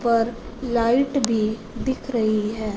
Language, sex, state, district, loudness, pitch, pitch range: Hindi, female, Punjab, Fazilka, -23 LUFS, 230 Hz, 220-245 Hz